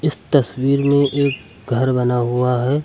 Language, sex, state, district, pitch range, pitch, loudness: Hindi, male, Uttar Pradesh, Lucknow, 125-140 Hz, 130 Hz, -18 LUFS